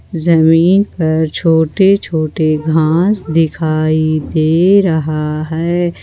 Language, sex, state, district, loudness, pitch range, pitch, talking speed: Hindi, female, Jharkhand, Ranchi, -13 LUFS, 155-175 Hz, 160 Hz, 90 wpm